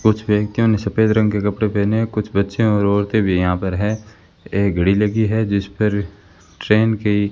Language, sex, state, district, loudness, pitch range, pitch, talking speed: Hindi, male, Rajasthan, Bikaner, -18 LUFS, 100-110 Hz, 105 Hz, 215 wpm